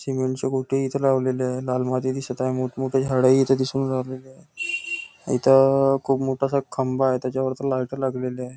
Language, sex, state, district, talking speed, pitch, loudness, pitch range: Marathi, male, Maharashtra, Nagpur, 190 wpm, 130 Hz, -23 LUFS, 130-135 Hz